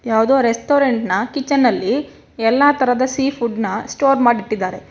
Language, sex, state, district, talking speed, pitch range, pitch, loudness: Kannada, female, Karnataka, Mysore, 160 wpm, 225-275 Hz, 245 Hz, -17 LUFS